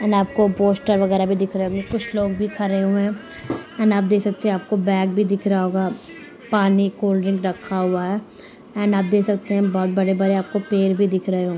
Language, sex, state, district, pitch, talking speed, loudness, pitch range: Hindi, male, Uttar Pradesh, Muzaffarnagar, 200 Hz, 225 wpm, -20 LUFS, 190-205 Hz